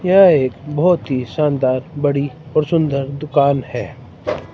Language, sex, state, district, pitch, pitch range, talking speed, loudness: Hindi, male, Himachal Pradesh, Shimla, 140 Hz, 130-150 Hz, 130 wpm, -17 LUFS